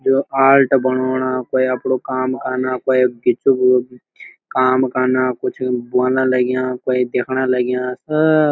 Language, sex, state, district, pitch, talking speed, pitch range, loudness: Garhwali, male, Uttarakhand, Uttarkashi, 130 Hz, 120 wpm, 125-130 Hz, -17 LUFS